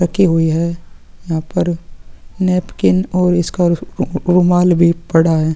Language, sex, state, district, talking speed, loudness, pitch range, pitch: Hindi, male, Chhattisgarh, Sukma, 150 wpm, -15 LUFS, 165-180 Hz, 175 Hz